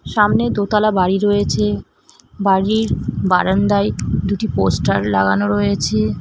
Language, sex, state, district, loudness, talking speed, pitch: Bengali, female, West Bengal, Alipurduar, -17 LUFS, 95 wpm, 190 Hz